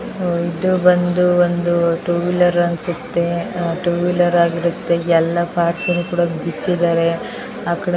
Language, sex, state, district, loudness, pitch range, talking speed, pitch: Kannada, female, Karnataka, Shimoga, -17 LUFS, 170-180 Hz, 135 wpm, 175 Hz